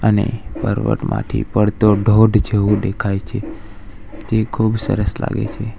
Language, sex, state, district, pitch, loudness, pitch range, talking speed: Gujarati, male, Gujarat, Valsad, 105 Hz, -17 LUFS, 105-110 Hz, 125 wpm